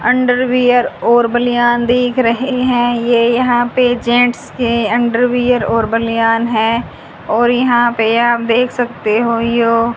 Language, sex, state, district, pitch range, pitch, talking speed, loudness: Hindi, female, Haryana, Jhajjar, 230-245 Hz, 240 Hz, 145 wpm, -13 LUFS